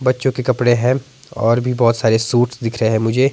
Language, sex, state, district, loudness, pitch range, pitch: Hindi, male, Himachal Pradesh, Shimla, -17 LUFS, 115-130 Hz, 125 Hz